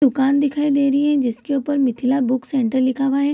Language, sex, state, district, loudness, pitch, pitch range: Hindi, female, Bihar, Kishanganj, -19 LUFS, 275 Hz, 260-285 Hz